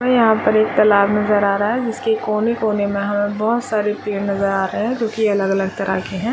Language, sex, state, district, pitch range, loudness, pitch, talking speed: Hindi, female, Chhattisgarh, Raigarh, 200-220 Hz, -18 LUFS, 210 Hz, 255 wpm